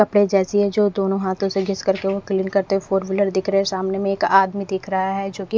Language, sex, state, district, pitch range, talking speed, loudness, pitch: Hindi, female, Haryana, Rohtak, 190-200 Hz, 300 wpm, -20 LUFS, 195 Hz